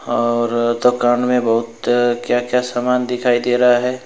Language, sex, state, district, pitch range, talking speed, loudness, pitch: Hindi, male, West Bengal, Alipurduar, 120-125 Hz, 165 wpm, -17 LUFS, 120 Hz